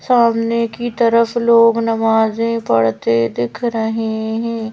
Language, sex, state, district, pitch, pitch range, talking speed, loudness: Hindi, female, Madhya Pradesh, Bhopal, 230 Hz, 220-230 Hz, 115 wpm, -16 LUFS